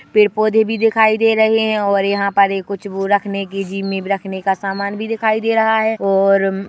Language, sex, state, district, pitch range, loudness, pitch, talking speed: Hindi, female, Chhattisgarh, Bilaspur, 195-220 Hz, -16 LUFS, 200 Hz, 215 wpm